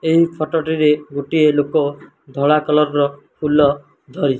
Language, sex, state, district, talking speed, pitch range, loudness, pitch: Odia, male, Odisha, Malkangiri, 150 wpm, 140-155 Hz, -17 LUFS, 150 Hz